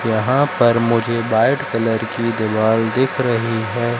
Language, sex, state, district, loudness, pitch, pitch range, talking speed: Hindi, male, Madhya Pradesh, Katni, -17 LUFS, 115 Hz, 115-120 Hz, 150 wpm